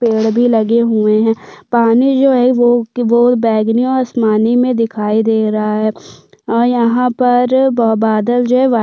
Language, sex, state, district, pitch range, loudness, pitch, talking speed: Hindi, female, Chhattisgarh, Sukma, 220-245 Hz, -13 LUFS, 235 Hz, 190 wpm